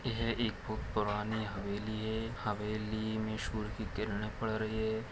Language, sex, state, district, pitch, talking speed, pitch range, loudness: Hindi, male, Jharkhand, Jamtara, 110 Hz, 175 wpm, 105-110 Hz, -37 LUFS